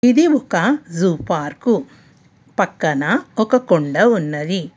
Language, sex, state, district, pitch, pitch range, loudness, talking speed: Telugu, female, Telangana, Hyderabad, 190 Hz, 155-240 Hz, -17 LUFS, 100 wpm